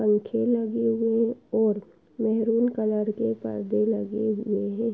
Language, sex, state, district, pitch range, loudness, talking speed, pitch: Hindi, female, Uttar Pradesh, Etah, 210-230 Hz, -26 LUFS, 145 wpm, 220 Hz